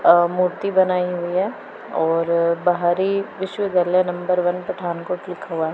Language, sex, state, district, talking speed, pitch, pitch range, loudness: Hindi, female, Punjab, Pathankot, 145 wpm, 180 Hz, 175-185 Hz, -21 LUFS